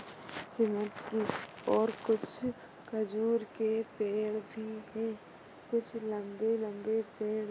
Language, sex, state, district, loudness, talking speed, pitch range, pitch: Hindi, female, Maharashtra, Dhule, -35 LUFS, 105 wpm, 215-225 Hz, 220 Hz